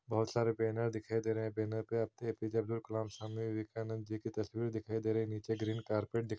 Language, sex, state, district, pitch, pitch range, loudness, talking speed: Hindi, male, Chhattisgarh, Bilaspur, 110 Hz, 110-115 Hz, -38 LUFS, 235 wpm